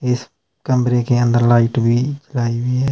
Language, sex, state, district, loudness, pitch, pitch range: Hindi, male, Himachal Pradesh, Shimla, -17 LUFS, 120 Hz, 120-125 Hz